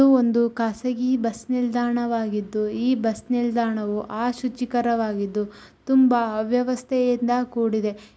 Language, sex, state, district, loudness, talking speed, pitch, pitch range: Kannada, female, Karnataka, Shimoga, -23 LUFS, 90 wpm, 235 Hz, 220-250 Hz